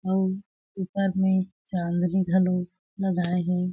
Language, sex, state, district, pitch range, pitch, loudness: Chhattisgarhi, female, Chhattisgarh, Jashpur, 180-190 Hz, 185 Hz, -26 LUFS